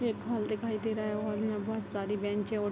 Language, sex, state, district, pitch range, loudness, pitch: Hindi, female, Bihar, Darbhanga, 205-220 Hz, -33 LUFS, 215 Hz